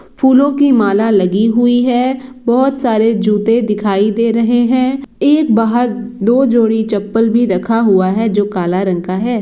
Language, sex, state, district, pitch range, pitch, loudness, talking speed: Hindi, female, Bihar, East Champaran, 210-245 Hz, 230 Hz, -13 LUFS, 170 wpm